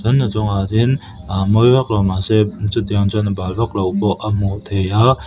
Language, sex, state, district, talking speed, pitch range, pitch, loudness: Mizo, male, Mizoram, Aizawl, 230 wpm, 100-115 Hz, 105 Hz, -17 LUFS